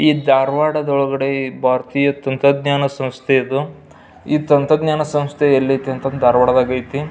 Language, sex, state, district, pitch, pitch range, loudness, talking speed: Kannada, male, Karnataka, Belgaum, 140 Hz, 135-145 Hz, -16 LUFS, 110 wpm